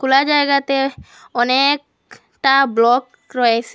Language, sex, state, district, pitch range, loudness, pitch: Bengali, female, Assam, Hailakandi, 245-275 Hz, -16 LUFS, 270 Hz